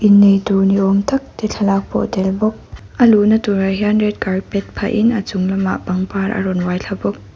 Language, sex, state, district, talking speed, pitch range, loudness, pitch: Mizo, female, Mizoram, Aizawl, 230 wpm, 190-210 Hz, -16 LUFS, 195 Hz